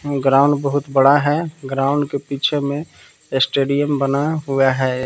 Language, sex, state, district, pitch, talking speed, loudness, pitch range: Hindi, male, Jharkhand, Palamu, 140 Hz, 145 wpm, -18 LUFS, 135-145 Hz